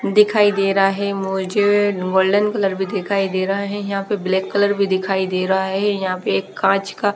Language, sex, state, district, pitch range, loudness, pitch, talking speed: Hindi, female, Haryana, Charkhi Dadri, 190-205 Hz, -18 LUFS, 195 Hz, 225 wpm